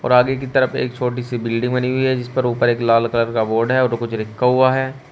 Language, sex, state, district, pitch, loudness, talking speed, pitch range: Hindi, male, Uttar Pradesh, Shamli, 125 Hz, -18 LUFS, 280 wpm, 115-130 Hz